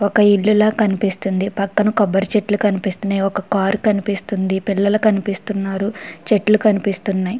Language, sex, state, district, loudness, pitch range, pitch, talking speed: Telugu, female, Andhra Pradesh, Chittoor, -17 LUFS, 195-210 Hz, 200 Hz, 115 wpm